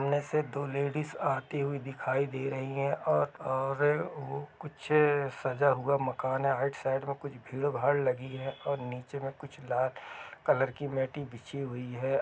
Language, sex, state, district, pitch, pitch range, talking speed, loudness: Hindi, male, Chhattisgarh, Rajnandgaon, 140 Hz, 130-145 Hz, 170 wpm, -32 LUFS